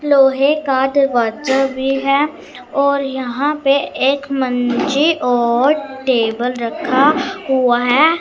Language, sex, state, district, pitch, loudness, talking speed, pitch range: Hindi, female, Punjab, Fazilka, 270 Hz, -16 LUFS, 110 wpm, 255-285 Hz